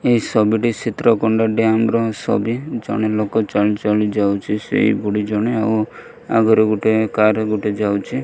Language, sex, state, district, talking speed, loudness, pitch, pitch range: Odia, male, Odisha, Malkangiri, 160 wpm, -18 LUFS, 110 Hz, 105-115 Hz